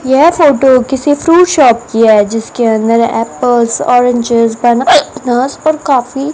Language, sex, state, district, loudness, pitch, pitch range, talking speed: Hindi, female, Rajasthan, Bikaner, -10 LUFS, 245 Hz, 230-280 Hz, 150 wpm